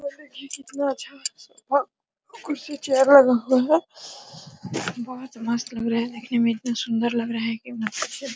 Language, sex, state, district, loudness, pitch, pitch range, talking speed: Hindi, female, Bihar, Araria, -23 LUFS, 255 Hz, 235-280 Hz, 160 wpm